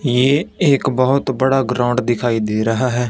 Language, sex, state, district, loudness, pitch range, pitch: Hindi, male, Punjab, Fazilka, -16 LUFS, 120-135 Hz, 130 Hz